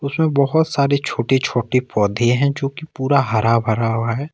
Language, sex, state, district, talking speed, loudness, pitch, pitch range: Hindi, male, Jharkhand, Ranchi, 195 wpm, -18 LUFS, 130 Hz, 115-140 Hz